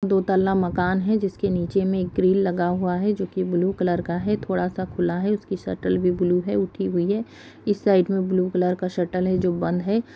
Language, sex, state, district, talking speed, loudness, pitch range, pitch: Kumaoni, female, Uttarakhand, Uttarkashi, 235 wpm, -23 LUFS, 180-195 Hz, 185 Hz